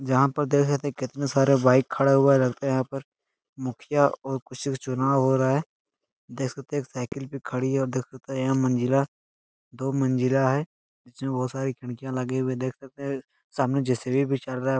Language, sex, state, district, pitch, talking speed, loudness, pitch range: Hindi, male, Bihar, Darbhanga, 135 Hz, 180 wpm, -25 LUFS, 130-140 Hz